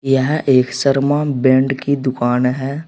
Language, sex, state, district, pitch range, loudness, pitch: Hindi, male, Uttar Pradesh, Saharanpur, 130-140 Hz, -16 LUFS, 135 Hz